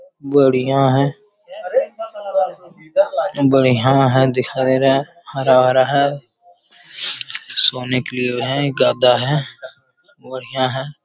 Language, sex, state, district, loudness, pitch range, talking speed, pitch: Hindi, male, Bihar, Jamui, -16 LUFS, 130-175 Hz, 90 wpm, 135 Hz